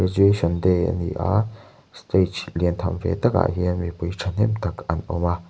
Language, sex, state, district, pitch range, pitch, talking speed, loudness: Mizo, male, Mizoram, Aizawl, 85-105 Hz, 90 Hz, 165 wpm, -23 LUFS